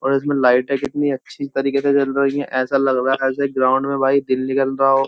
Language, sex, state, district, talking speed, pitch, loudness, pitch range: Hindi, male, Uttar Pradesh, Jyotiba Phule Nagar, 260 wpm, 135 Hz, -18 LUFS, 135-140 Hz